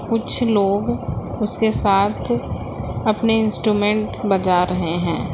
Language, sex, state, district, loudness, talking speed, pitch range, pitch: Hindi, female, Uttar Pradesh, Lucknow, -18 LUFS, 100 wpm, 180-215 Hz, 205 Hz